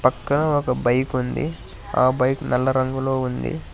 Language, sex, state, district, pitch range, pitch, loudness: Telugu, male, Telangana, Hyderabad, 125-135 Hz, 130 Hz, -22 LUFS